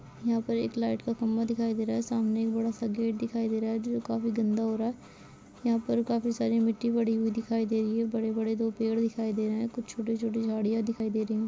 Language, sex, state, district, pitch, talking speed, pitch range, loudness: Hindi, female, Chhattisgarh, Sarguja, 225 Hz, 270 wpm, 220-230 Hz, -30 LUFS